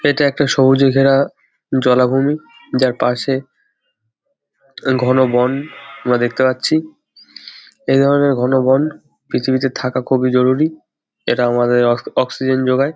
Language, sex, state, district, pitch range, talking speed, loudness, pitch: Bengali, male, West Bengal, Jhargram, 125-140 Hz, 115 wpm, -16 LUFS, 130 Hz